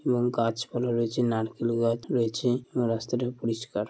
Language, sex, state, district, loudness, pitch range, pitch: Bengali, male, West Bengal, Malda, -28 LUFS, 115-125 Hz, 115 Hz